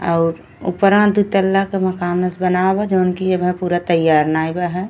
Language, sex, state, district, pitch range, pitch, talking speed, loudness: Bhojpuri, female, Uttar Pradesh, Ghazipur, 175-190 Hz, 180 Hz, 170 wpm, -17 LUFS